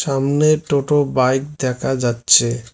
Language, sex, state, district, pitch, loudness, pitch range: Bengali, male, West Bengal, Cooch Behar, 135 Hz, -17 LUFS, 125-145 Hz